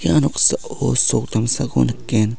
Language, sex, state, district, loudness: Garo, male, Meghalaya, South Garo Hills, -17 LUFS